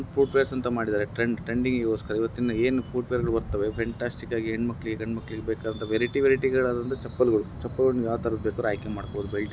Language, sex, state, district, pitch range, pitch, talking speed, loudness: Kannada, male, Karnataka, Bellary, 110-125 Hz, 115 Hz, 145 wpm, -27 LUFS